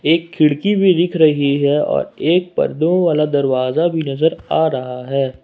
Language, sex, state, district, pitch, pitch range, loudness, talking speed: Hindi, male, Jharkhand, Ranchi, 155 Hz, 140-170 Hz, -16 LUFS, 190 wpm